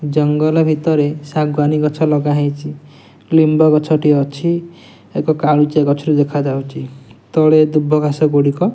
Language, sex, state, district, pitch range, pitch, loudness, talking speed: Odia, male, Odisha, Nuapada, 145-155 Hz, 150 Hz, -15 LUFS, 130 wpm